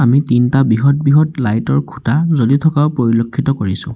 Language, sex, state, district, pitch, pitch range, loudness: Assamese, male, Assam, Sonitpur, 135 Hz, 120-145 Hz, -14 LUFS